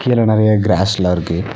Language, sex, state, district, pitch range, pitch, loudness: Tamil, male, Tamil Nadu, Nilgiris, 90-110 Hz, 105 Hz, -15 LUFS